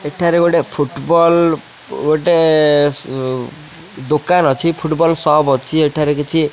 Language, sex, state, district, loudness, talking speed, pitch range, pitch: Odia, male, Odisha, Khordha, -14 LUFS, 90 wpm, 145-165 Hz, 155 Hz